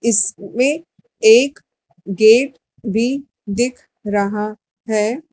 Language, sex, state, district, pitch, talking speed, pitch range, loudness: Hindi, male, Madhya Pradesh, Dhar, 225 Hz, 80 wpm, 210-270 Hz, -17 LUFS